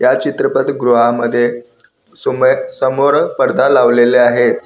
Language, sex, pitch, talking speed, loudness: Marathi, male, 120 Hz, 90 wpm, -13 LUFS